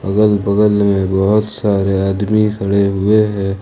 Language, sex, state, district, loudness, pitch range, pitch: Hindi, male, Jharkhand, Ranchi, -14 LUFS, 95-105 Hz, 100 Hz